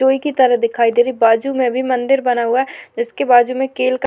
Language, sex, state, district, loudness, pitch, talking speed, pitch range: Hindi, female, Maharashtra, Chandrapur, -15 LUFS, 255 Hz, 265 wpm, 240-265 Hz